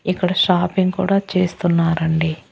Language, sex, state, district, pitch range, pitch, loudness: Telugu, female, Andhra Pradesh, Annamaya, 165-190 Hz, 180 Hz, -18 LUFS